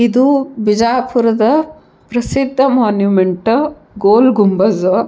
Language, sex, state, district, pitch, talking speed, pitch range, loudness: Kannada, female, Karnataka, Bijapur, 235 Hz, 70 wpm, 205-260 Hz, -13 LUFS